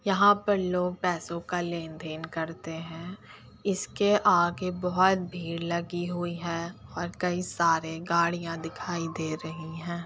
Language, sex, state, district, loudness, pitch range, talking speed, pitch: Hindi, female, Uttar Pradesh, Etah, -29 LUFS, 165-180 Hz, 135 wpm, 175 Hz